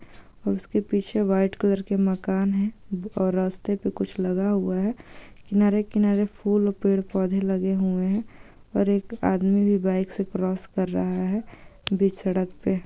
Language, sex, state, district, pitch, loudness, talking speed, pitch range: Hindi, female, Andhra Pradesh, Guntur, 195 Hz, -25 LUFS, 140 wpm, 185-205 Hz